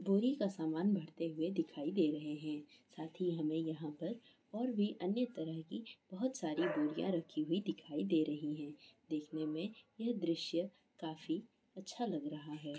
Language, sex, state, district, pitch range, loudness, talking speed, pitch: Maithili, female, Bihar, Araria, 155-225 Hz, -40 LUFS, 175 wpm, 170 Hz